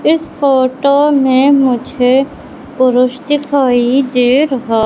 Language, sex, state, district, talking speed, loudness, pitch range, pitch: Hindi, female, Madhya Pradesh, Katni, 100 wpm, -12 LUFS, 250-280 Hz, 265 Hz